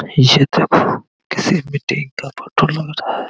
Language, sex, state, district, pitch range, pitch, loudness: Hindi, male, Bihar, Araria, 140-155 Hz, 145 Hz, -16 LUFS